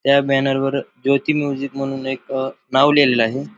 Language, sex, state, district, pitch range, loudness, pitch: Marathi, male, Maharashtra, Pune, 135-140 Hz, -18 LUFS, 135 Hz